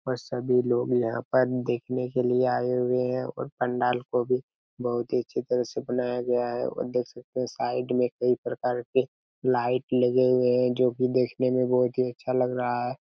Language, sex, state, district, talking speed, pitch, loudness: Hindi, male, Chhattisgarh, Raigarh, 210 wpm, 125 Hz, -26 LUFS